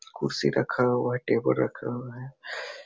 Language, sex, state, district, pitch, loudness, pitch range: Hindi, male, Chhattisgarh, Raigarh, 125 Hz, -27 LUFS, 125-130 Hz